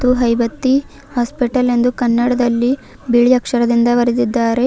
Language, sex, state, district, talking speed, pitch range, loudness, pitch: Kannada, female, Karnataka, Bidar, 105 wpm, 235-250 Hz, -15 LUFS, 240 Hz